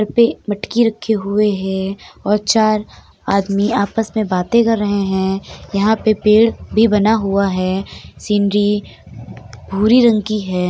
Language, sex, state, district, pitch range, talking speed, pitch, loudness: Hindi, female, Uttar Pradesh, Etah, 195-220 Hz, 155 wpm, 210 Hz, -16 LUFS